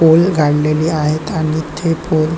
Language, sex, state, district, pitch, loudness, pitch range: Marathi, male, Maharashtra, Chandrapur, 155 Hz, -15 LUFS, 155-160 Hz